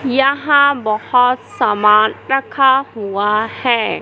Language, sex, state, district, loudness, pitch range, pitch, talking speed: Hindi, male, Madhya Pradesh, Katni, -14 LUFS, 215-270 Hz, 250 Hz, 90 wpm